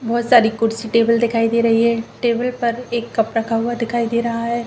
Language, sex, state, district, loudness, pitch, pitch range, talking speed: Hindi, female, Jharkhand, Jamtara, -18 LUFS, 235 Hz, 230-235 Hz, 230 wpm